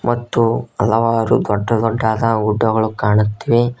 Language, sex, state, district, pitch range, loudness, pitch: Kannada, male, Karnataka, Koppal, 110-115 Hz, -16 LUFS, 115 Hz